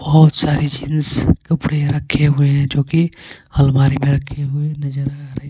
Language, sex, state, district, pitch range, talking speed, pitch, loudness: Hindi, male, Punjab, Pathankot, 140-150 Hz, 185 wpm, 140 Hz, -16 LUFS